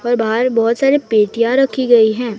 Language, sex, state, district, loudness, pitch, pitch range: Hindi, female, Odisha, Sambalpur, -14 LUFS, 240 Hz, 225-255 Hz